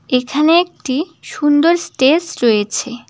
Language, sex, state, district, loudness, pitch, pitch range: Bengali, female, West Bengal, Cooch Behar, -15 LUFS, 295 Hz, 255-330 Hz